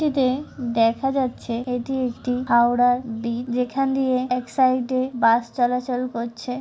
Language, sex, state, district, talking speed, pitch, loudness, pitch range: Bengali, female, West Bengal, Kolkata, 135 wpm, 250 Hz, -22 LUFS, 240-255 Hz